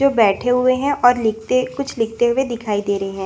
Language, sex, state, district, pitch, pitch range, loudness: Hindi, female, Chhattisgarh, Bastar, 240 Hz, 220-255 Hz, -18 LUFS